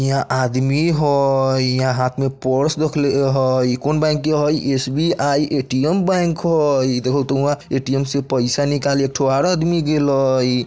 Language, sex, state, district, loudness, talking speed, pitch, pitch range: Bajjika, male, Bihar, Vaishali, -18 LUFS, 165 wpm, 140 Hz, 130-150 Hz